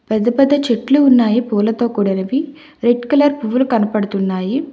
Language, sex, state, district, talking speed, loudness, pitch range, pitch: Telugu, female, Telangana, Hyderabad, 125 wpm, -15 LUFS, 215-280 Hz, 240 Hz